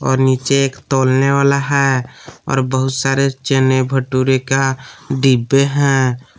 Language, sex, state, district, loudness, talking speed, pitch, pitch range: Hindi, male, Jharkhand, Palamu, -15 LUFS, 130 wpm, 135 Hz, 130-135 Hz